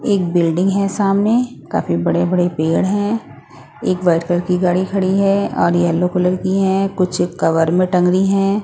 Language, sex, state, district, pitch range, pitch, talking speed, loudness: Hindi, female, Odisha, Nuapada, 170-195 Hz, 180 Hz, 175 wpm, -16 LUFS